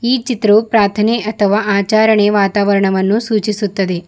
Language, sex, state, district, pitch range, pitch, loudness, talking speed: Kannada, female, Karnataka, Bidar, 200-220 Hz, 210 Hz, -13 LUFS, 105 wpm